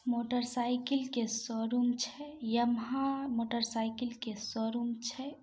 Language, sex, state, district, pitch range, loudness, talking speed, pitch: Maithili, female, Bihar, Samastipur, 230-255 Hz, -34 LUFS, 100 wpm, 240 Hz